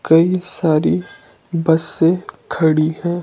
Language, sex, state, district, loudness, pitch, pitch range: Hindi, male, Himachal Pradesh, Shimla, -17 LUFS, 165 Hz, 155-175 Hz